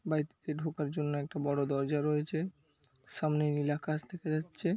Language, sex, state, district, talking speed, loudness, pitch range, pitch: Bengali, male, West Bengal, Paschim Medinipur, 150 wpm, -34 LUFS, 145-155 Hz, 150 Hz